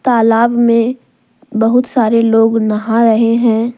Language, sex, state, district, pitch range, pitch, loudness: Hindi, female, Jharkhand, Deoghar, 225-240 Hz, 230 Hz, -12 LUFS